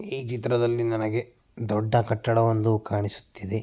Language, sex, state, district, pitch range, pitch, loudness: Kannada, male, Karnataka, Mysore, 110-120 Hz, 115 Hz, -26 LUFS